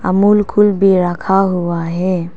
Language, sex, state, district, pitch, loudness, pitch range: Hindi, female, Arunachal Pradesh, Papum Pare, 185 Hz, -14 LUFS, 175-195 Hz